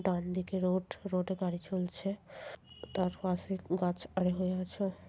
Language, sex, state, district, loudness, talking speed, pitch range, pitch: Bengali, female, West Bengal, Jhargram, -35 LUFS, 140 wpm, 180-190 Hz, 185 Hz